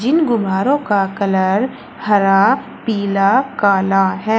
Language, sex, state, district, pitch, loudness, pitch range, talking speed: Hindi, female, Uttar Pradesh, Shamli, 200 Hz, -15 LUFS, 195-245 Hz, 110 wpm